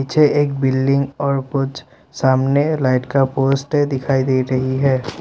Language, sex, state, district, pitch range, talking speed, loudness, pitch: Hindi, male, Assam, Sonitpur, 130-140 Hz, 150 wpm, -17 LUFS, 135 Hz